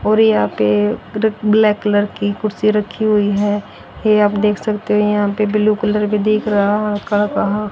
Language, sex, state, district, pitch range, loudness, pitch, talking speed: Hindi, female, Haryana, Rohtak, 205-215 Hz, -16 LUFS, 210 Hz, 195 wpm